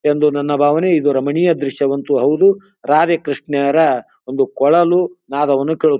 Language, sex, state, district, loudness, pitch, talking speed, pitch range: Kannada, male, Karnataka, Bijapur, -15 LUFS, 145 Hz, 140 wpm, 140-170 Hz